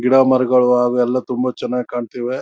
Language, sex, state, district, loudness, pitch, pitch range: Kannada, male, Karnataka, Chamarajanagar, -17 LUFS, 125 Hz, 125-130 Hz